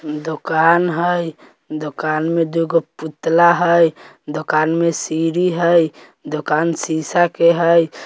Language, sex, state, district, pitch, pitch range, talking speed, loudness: Bajjika, male, Bihar, Vaishali, 165 Hz, 155-170 Hz, 110 wpm, -17 LUFS